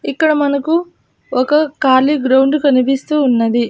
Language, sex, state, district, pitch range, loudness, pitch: Telugu, female, Andhra Pradesh, Annamaya, 260-300 Hz, -14 LUFS, 280 Hz